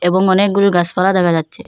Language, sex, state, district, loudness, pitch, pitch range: Bengali, female, Assam, Hailakandi, -14 LUFS, 190 Hz, 175-200 Hz